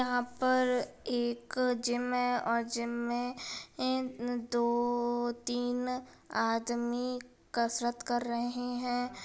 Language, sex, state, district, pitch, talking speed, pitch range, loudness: Hindi, female, Bihar, Gaya, 245 Hz, 105 wpm, 240-250 Hz, -33 LUFS